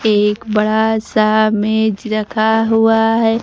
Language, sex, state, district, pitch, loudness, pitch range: Hindi, female, Bihar, Kaimur, 220 Hz, -14 LUFS, 215-225 Hz